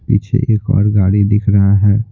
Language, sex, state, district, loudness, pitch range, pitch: Hindi, male, Bihar, Patna, -13 LUFS, 100-110 Hz, 105 Hz